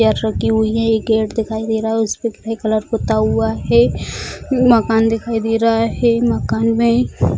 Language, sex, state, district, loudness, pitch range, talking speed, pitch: Hindi, female, Bihar, Jamui, -16 LUFS, 215-230 Hz, 205 wpm, 225 Hz